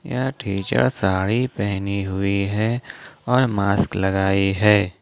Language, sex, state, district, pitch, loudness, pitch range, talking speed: Hindi, male, Jharkhand, Ranchi, 100 Hz, -21 LUFS, 95-110 Hz, 120 wpm